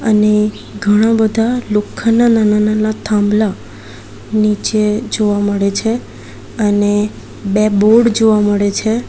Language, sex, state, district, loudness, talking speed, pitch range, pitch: Gujarati, female, Gujarat, Valsad, -14 LUFS, 105 wpm, 205-220 Hz, 210 Hz